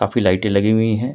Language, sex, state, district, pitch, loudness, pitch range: Hindi, male, Jharkhand, Ranchi, 110 Hz, -17 LUFS, 100-110 Hz